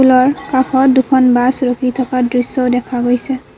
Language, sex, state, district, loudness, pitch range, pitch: Assamese, female, Assam, Kamrup Metropolitan, -13 LUFS, 250-260 Hz, 255 Hz